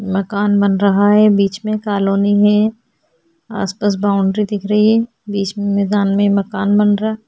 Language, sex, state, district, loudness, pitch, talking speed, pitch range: Hindi, female, Chhattisgarh, Korba, -15 LUFS, 205 Hz, 165 wpm, 200-210 Hz